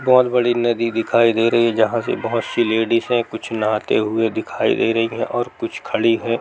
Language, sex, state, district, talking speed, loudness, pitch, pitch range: Hindi, male, Bihar, East Champaran, 245 wpm, -18 LUFS, 115 Hz, 115-120 Hz